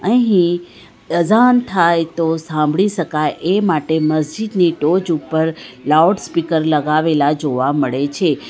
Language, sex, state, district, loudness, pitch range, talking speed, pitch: Gujarati, female, Gujarat, Valsad, -16 LUFS, 155-180 Hz, 120 wpm, 160 Hz